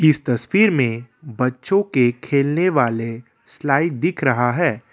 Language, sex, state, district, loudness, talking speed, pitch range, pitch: Hindi, male, Assam, Kamrup Metropolitan, -19 LUFS, 135 wpm, 120-165 Hz, 135 Hz